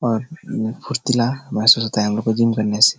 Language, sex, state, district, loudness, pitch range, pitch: Hindi, male, Bihar, Jahanabad, -18 LUFS, 110-125 Hz, 115 Hz